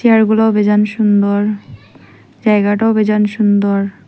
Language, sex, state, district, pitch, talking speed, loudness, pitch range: Bengali, female, Assam, Hailakandi, 210 Hz, 90 wpm, -13 LUFS, 205-215 Hz